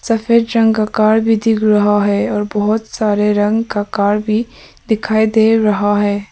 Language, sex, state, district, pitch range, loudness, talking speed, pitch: Hindi, female, Arunachal Pradesh, Papum Pare, 205-220 Hz, -14 LUFS, 170 wpm, 215 Hz